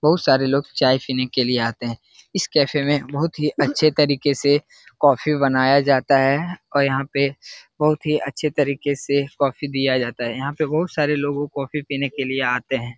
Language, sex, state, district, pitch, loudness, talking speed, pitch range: Hindi, male, Bihar, Jahanabad, 140 Hz, -20 LUFS, 205 wpm, 135-150 Hz